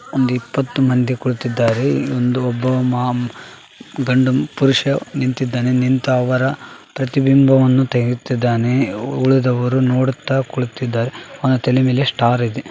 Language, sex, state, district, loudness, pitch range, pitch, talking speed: Kannada, male, Karnataka, Raichur, -17 LUFS, 125-135 Hz, 130 Hz, 95 wpm